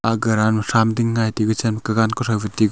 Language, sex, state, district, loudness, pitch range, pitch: Wancho, male, Arunachal Pradesh, Longding, -19 LUFS, 110-115 Hz, 110 Hz